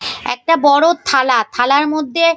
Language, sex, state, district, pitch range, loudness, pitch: Bengali, female, West Bengal, Paschim Medinipur, 270-330 Hz, -14 LUFS, 290 Hz